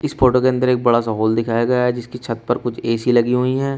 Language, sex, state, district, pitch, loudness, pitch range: Hindi, male, Uttar Pradesh, Shamli, 125 Hz, -18 LUFS, 115-125 Hz